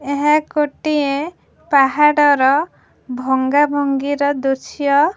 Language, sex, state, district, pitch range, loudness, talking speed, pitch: Odia, female, Odisha, Khordha, 275-295 Hz, -16 LUFS, 60 wpm, 285 Hz